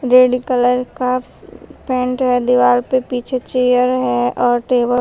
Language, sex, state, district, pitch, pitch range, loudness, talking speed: Hindi, female, Uttar Pradesh, Shamli, 250 Hz, 245-255 Hz, -16 LUFS, 155 wpm